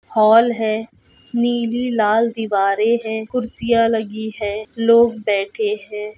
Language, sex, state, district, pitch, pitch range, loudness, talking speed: Hindi, female, Chhattisgarh, Balrampur, 220 Hz, 210-230 Hz, -18 LUFS, 115 wpm